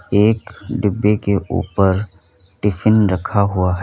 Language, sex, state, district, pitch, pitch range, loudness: Hindi, male, Uttar Pradesh, Lalitpur, 100 Hz, 95-105 Hz, -17 LUFS